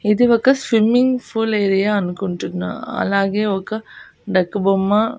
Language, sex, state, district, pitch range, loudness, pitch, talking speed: Telugu, female, Andhra Pradesh, Annamaya, 195-225 Hz, -18 LUFS, 210 Hz, 115 wpm